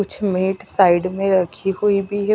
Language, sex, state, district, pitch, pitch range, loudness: Hindi, female, Punjab, Kapurthala, 195 Hz, 185-200 Hz, -18 LUFS